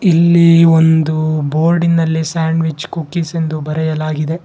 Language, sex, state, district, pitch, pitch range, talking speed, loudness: Kannada, male, Karnataka, Bangalore, 160 Hz, 155-165 Hz, 95 wpm, -13 LUFS